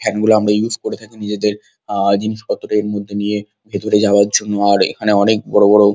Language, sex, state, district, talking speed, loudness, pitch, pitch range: Bengali, male, West Bengal, Kolkata, 200 wpm, -16 LUFS, 105 Hz, 100-105 Hz